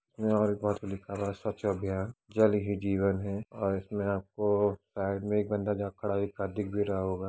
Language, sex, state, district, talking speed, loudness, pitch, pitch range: Hindi, male, Uttar Pradesh, Etah, 205 wpm, -31 LUFS, 100 Hz, 100-105 Hz